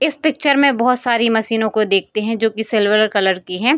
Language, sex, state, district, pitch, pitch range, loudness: Hindi, female, Bihar, Darbhanga, 225 Hz, 215-250 Hz, -16 LUFS